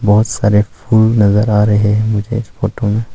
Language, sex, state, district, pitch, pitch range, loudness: Hindi, male, Arunachal Pradesh, Longding, 105 Hz, 105-110 Hz, -13 LUFS